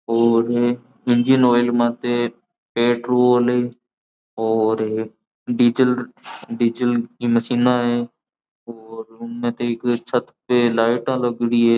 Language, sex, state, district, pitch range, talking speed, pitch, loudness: Marwari, male, Rajasthan, Nagaur, 115-120 Hz, 100 wpm, 120 Hz, -19 LUFS